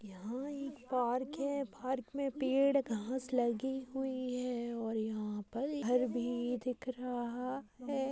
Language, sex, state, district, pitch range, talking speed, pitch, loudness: Hindi, female, Rajasthan, Nagaur, 240-270 Hz, 150 wpm, 255 Hz, -37 LUFS